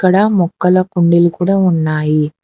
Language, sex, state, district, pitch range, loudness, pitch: Telugu, female, Telangana, Hyderabad, 160-185 Hz, -13 LUFS, 175 Hz